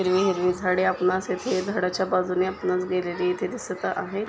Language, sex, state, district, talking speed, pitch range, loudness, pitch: Marathi, female, Maharashtra, Solapur, 170 wpm, 180-185 Hz, -25 LUFS, 185 Hz